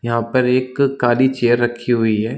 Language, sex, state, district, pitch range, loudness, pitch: Hindi, male, Chhattisgarh, Bilaspur, 120-130 Hz, -17 LUFS, 120 Hz